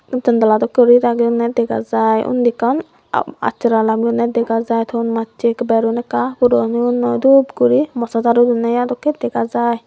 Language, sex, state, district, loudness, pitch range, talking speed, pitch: Chakma, female, Tripura, Dhalai, -16 LUFS, 230-245 Hz, 160 wpm, 235 Hz